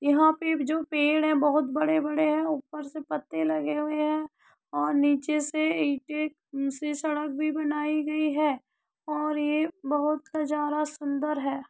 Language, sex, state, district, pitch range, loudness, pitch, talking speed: Hindi, female, Uttar Pradesh, Muzaffarnagar, 295-310 Hz, -27 LUFS, 300 Hz, 155 wpm